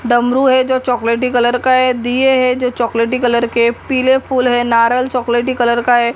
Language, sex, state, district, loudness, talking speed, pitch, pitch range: Hindi, female, Maharashtra, Mumbai Suburban, -14 LUFS, 205 wpm, 245 Hz, 240-255 Hz